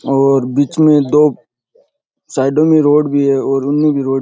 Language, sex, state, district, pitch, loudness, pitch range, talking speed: Rajasthani, male, Rajasthan, Churu, 145 Hz, -13 LUFS, 135-150 Hz, 200 wpm